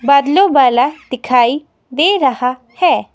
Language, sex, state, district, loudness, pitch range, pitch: Hindi, female, Himachal Pradesh, Shimla, -13 LUFS, 250-305 Hz, 270 Hz